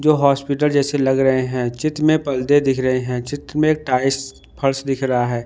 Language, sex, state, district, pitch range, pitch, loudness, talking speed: Hindi, male, Madhya Pradesh, Dhar, 130-145 Hz, 135 Hz, -18 LUFS, 220 wpm